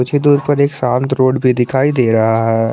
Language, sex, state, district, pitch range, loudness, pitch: Hindi, male, Jharkhand, Garhwa, 120-140 Hz, -14 LUFS, 130 Hz